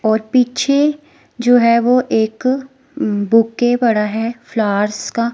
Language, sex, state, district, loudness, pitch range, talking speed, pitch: Hindi, female, Himachal Pradesh, Shimla, -15 LUFS, 220-255 Hz, 125 wpm, 240 Hz